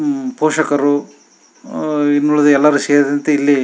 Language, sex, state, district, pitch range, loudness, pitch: Kannada, male, Karnataka, Shimoga, 145-155 Hz, -14 LUFS, 145 Hz